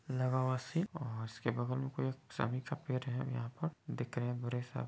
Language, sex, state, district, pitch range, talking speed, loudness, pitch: Hindi, male, Bihar, Muzaffarpur, 120-135 Hz, 260 wpm, -39 LUFS, 130 Hz